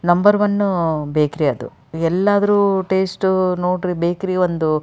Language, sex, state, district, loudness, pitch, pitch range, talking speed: Kannada, female, Karnataka, Raichur, -18 LUFS, 180 Hz, 160-190 Hz, 125 wpm